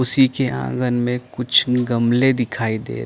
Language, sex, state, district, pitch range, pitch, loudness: Hindi, male, Chandigarh, Chandigarh, 115-125 Hz, 125 Hz, -18 LUFS